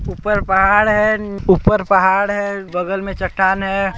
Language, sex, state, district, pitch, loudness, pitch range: Hindi, male, Chhattisgarh, Balrampur, 195 Hz, -16 LUFS, 190-205 Hz